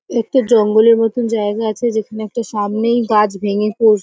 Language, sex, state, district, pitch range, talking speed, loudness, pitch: Bengali, female, West Bengal, Paschim Medinipur, 210-230 Hz, 180 wpm, -15 LUFS, 220 Hz